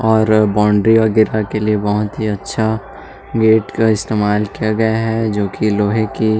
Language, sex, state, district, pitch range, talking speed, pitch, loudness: Hindi, male, Chhattisgarh, Jashpur, 105-110 Hz, 120 wpm, 110 Hz, -15 LUFS